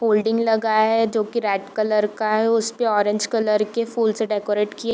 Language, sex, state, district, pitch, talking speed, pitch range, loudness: Hindi, female, Bihar, East Champaran, 220 Hz, 230 wpm, 210-225 Hz, -20 LUFS